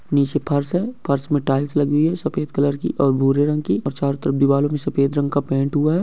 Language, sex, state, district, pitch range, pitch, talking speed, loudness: Hindi, male, Maharashtra, Aurangabad, 140-150 Hz, 145 Hz, 270 wpm, -20 LUFS